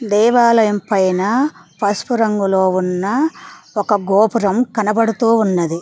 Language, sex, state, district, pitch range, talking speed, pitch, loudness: Telugu, female, Telangana, Mahabubabad, 195-230 Hz, 95 wpm, 210 Hz, -16 LUFS